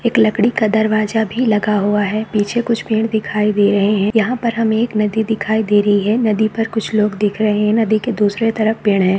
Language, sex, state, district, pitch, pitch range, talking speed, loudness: Hindi, female, Uttar Pradesh, Etah, 215 Hz, 210-225 Hz, 240 wpm, -16 LUFS